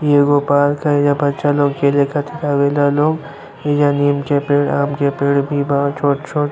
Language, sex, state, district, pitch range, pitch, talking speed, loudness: Bhojpuri, male, Uttar Pradesh, Ghazipur, 140-145 Hz, 145 Hz, 210 wpm, -16 LUFS